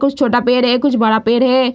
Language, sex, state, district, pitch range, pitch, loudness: Hindi, female, Bihar, Lakhisarai, 245-260 Hz, 250 Hz, -13 LUFS